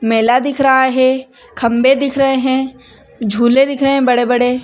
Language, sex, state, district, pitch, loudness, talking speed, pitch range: Hindi, female, Chhattisgarh, Bilaspur, 260 Hz, -13 LUFS, 170 wpm, 245-270 Hz